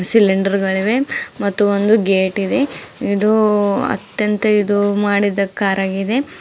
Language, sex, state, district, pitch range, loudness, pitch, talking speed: Kannada, female, Karnataka, Bidar, 195-215 Hz, -16 LUFS, 205 Hz, 110 wpm